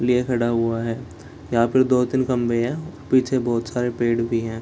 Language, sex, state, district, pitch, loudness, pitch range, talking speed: Hindi, male, Bihar, Gopalganj, 120 Hz, -21 LUFS, 115-125 Hz, 220 wpm